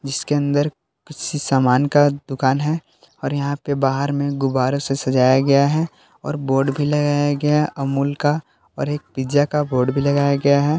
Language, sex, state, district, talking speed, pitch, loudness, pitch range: Hindi, male, Jharkhand, Palamu, 190 wpm, 140 Hz, -19 LUFS, 135-145 Hz